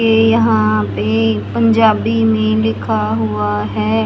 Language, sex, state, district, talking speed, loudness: Hindi, female, Haryana, Jhajjar, 120 wpm, -14 LUFS